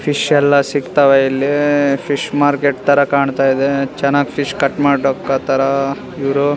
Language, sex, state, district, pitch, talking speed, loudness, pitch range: Kannada, male, Karnataka, Raichur, 140 Hz, 130 wpm, -15 LUFS, 135-145 Hz